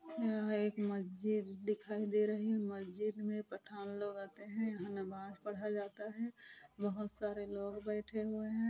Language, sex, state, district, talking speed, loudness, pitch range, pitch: Hindi, female, Chhattisgarh, Kabirdham, 165 wpm, -41 LUFS, 200-215 Hz, 210 Hz